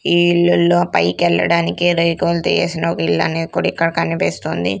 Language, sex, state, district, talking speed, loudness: Telugu, female, Andhra Pradesh, Sri Satya Sai, 110 wpm, -16 LUFS